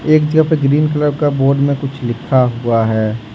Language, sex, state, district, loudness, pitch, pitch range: Hindi, male, Jharkhand, Ranchi, -14 LUFS, 140 Hz, 120-150 Hz